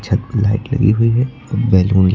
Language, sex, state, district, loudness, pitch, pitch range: Hindi, male, Uttar Pradesh, Lucknow, -15 LUFS, 110 Hz, 100-120 Hz